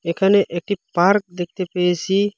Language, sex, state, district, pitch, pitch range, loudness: Bengali, male, Assam, Hailakandi, 185 Hz, 175-200 Hz, -19 LUFS